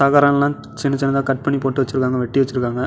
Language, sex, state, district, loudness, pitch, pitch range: Tamil, male, Tamil Nadu, Namakkal, -18 LUFS, 135 Hz, 130-140 Hz